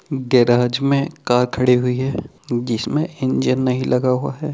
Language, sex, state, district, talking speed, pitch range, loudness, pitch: Hindi, male, Chhattisgarh, Bilaspur, 160 wpm, 125-140 Hz, -18 LUFS, 130 Hz